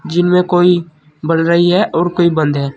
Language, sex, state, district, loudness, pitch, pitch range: Hindi, male, Uttar Pradesh, Saharanpur, -13 LUFS, 170 Hz, 155-175 Hz